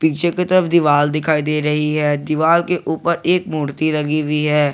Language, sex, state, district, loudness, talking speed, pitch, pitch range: Hindi, male, Jharkhand, Garhwa, -17 LUFS, 200 wpm, 155 Hz, 150-170 Hz